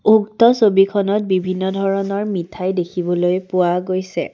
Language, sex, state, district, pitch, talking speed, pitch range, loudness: Assamese, female, Assam, Kamrup Metropolitan, 190 Hz, 110 wpm, 180-205 Hz, -17 LUFS